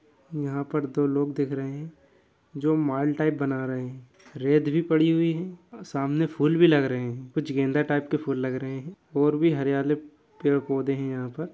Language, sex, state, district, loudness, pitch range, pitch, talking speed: Hindi, male, Chhattisgarh, Kabirdham, -26 LUFS, 135-155 Hz, 145 Hz, 205 wpm